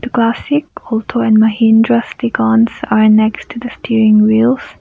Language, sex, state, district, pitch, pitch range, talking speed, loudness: English, female, Nagaland, Kohima, 225 Hz, 215-240 Hz, 135 wpm, -12 LUFS